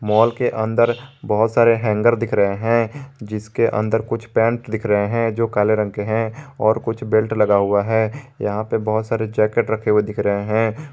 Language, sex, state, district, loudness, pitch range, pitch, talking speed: Hindi, male, Jharkhand, Garhwa, -19 LUFS, 105-115 Hz, 110 Hz, 205 wpm